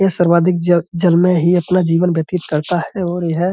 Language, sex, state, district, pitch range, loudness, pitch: Hindi, male, Uttar Pradesh, Budaun, 170-180 Hz, -15 LUFS, 175 Hz